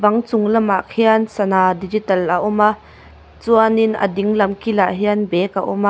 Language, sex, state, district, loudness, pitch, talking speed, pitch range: Mizo, female, Mizoram, Aizawl, -16 LUFS, 210 Hz, 215 wpm, 190-220 Hz